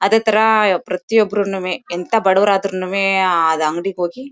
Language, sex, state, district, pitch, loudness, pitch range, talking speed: Kannada, female, Karnataka, Mysore, 195 Hz, -16 LUFS, 180-215 Hz, 125 wpm